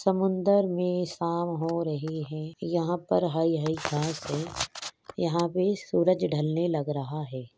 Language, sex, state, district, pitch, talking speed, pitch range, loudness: Hindi, female, Uttar Pradesh, Hamirpur, 170 Hz, 150 wpm, 155-180 Hz, -28 LUFS